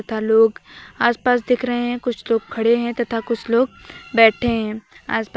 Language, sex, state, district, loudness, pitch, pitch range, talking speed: Hindi, female, Uttar Pradesh, Lucknow, -19 LUFS, 235 Hz, 225-245 Hz, 190 wpm